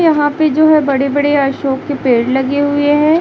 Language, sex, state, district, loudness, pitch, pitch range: Hindi, female, Chhattisgarh, Raipur, -13 LUFS, 285 Hz, 275-300 Hz